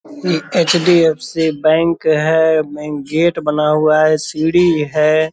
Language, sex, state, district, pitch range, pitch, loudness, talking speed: Hindi, male, Bihar, Purnia, 155-165 Hz, 160 Hz, -14 LUFS, 125 wpm